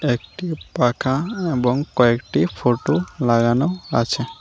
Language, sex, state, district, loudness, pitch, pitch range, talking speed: Bengali, male, Tripura, West Tripura, -20 LUFS, 130 Hz, 120-160 Hz, 95 wpm